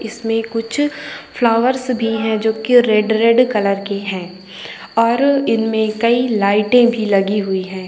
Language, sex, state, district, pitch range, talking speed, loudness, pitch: Bhojpuri, female, Uttar Pradesh, Gorakhpur, 205-235 Hz, 160 wpm, -16 LUFS, 225 Hz